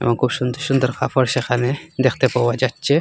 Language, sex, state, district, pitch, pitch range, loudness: Bengali, male, Assam, Hailakandi, 130 Hz, 125-135 Hz, -19 LUFS